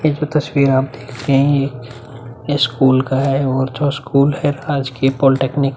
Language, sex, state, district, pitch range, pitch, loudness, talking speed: Hindi, male, Uttar Pradesh, Budaun, 130-145 Hz, 135 Hz, -16 LUFS, 185 wpm